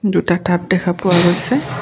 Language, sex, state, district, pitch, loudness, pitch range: Assamese, male, Assam, Kamrup Metropolitan, 180 Hz, -15 LUFS, 175-185 Hz